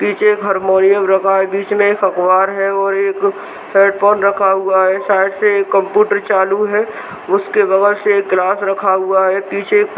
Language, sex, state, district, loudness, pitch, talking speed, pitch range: Hindi, female, Uttarakhand, Uttarkashi, -14 LUFS, 195 Hz, 185 wpm, 190-205 Hz